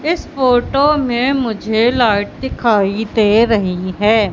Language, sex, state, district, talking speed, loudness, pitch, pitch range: Hindi, female, Madhya Pradesh, Katni, 125 wpm, -15 LUFS, 225 Hz, 210-255 Hz